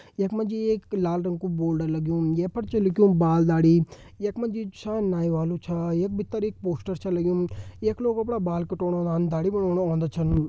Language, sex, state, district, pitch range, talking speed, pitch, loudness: Hindi, male, Uttarakhand, Uttarkashi, 165-205 Hz, 225 wpm, 180 Hz, -25 LUFS